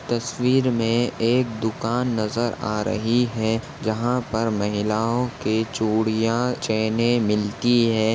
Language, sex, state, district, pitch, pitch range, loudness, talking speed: Hindi, male, Maharashtra, Dhule, 115 Hz, 110-120 Hz, -22 LUFS, 120 wpm